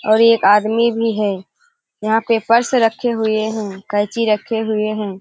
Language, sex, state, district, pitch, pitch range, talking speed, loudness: Hindi, female, Bihar, Kishanganj, 220 Hz, 210-230 Hz, 175 wpm, -17 LUFS